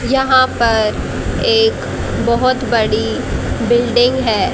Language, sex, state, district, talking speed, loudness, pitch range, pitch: Hindi, female, Haryana, Jhajjar, 90 wpm, -15 LUFS, 230-260 Hz, 245 Hz